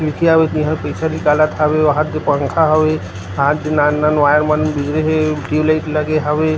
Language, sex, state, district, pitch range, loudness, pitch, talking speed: Chhattisgarhi, male, Chhattisgarh, Rajnandgaon, 150-155 Hz, -15 LUFS, 155 Hz, 180 wpm